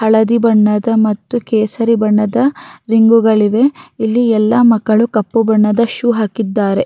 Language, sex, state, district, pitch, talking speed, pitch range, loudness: Kannada, female, Karnataka, Raichur, 225 Hz, 115 wpm, 215-235 Hz, -13 LUFS